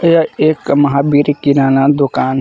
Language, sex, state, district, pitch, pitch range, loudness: Hindi, male, Jharkhand, Palamu, 145 Hz, 140-150 Hz, -12 LUFS